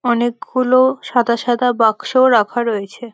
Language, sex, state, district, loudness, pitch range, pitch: Bengali, female, West Bengal, Malda, -16 LUFS, 235-255 Hz, 240 Hz